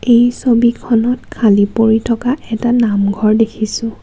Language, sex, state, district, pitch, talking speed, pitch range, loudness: Assamese, female, Assam, Kamrup Metropolitan, 230 Hz, 120 wpm, 220-240 Hz, -14 LUFS